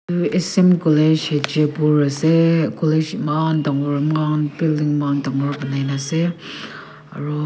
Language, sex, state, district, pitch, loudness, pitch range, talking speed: Nagamese, female, Nagaland, Kohima, 150 Hz, -18 LUFS, 145-160 Hz, 130 wpm